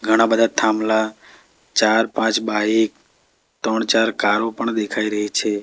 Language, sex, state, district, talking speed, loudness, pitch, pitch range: Gujarati, male, Gujarat, Valsad, 140 wpm, -19 LUFS, 110 Hz, 105-115 Hz